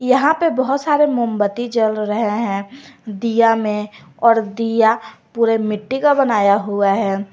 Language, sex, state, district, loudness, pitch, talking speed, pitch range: Hindi, female, Jharkhand, Garhwa, -17 LUFS, 225 Hz, 145 wpm, 210-255 Hz